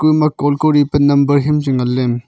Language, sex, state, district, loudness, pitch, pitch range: Wancho, male, Arunachal Pradesh, Longding, -14 LUFS, 145 Hz, 135-150 Hz